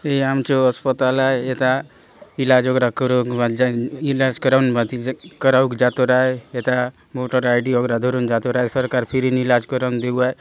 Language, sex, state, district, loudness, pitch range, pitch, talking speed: Halbi, male, Chhattisgarh, Bastar, -19 LUFS, 125-130 Hz, 130 Hz, 140 wpm